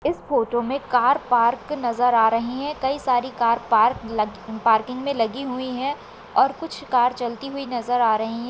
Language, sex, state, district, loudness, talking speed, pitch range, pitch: Hindi, female, Maharashtra, Solapur, -22 LUFS, 205 wpm, 230-270 Hz, 245 Hz